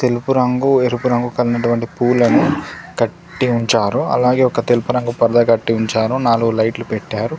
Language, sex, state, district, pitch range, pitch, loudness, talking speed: Telugu, male, Telangana, Komaram Bheem, 115-125 Hz, 120 Hz, -16 LUFS, 140 wpm